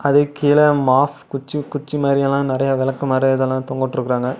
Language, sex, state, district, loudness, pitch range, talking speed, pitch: Tamil, male, Tamil Nadu, Namakkal, -18 LUFS, 130-145 Hz, 150 wpm, 135 Hz